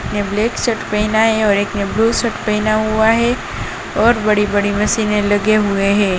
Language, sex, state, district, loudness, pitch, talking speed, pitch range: Hindi, male, Bihar, Jahanabad, -15 LUFS, 210 Hz, 195 wpm, 205-220 Hz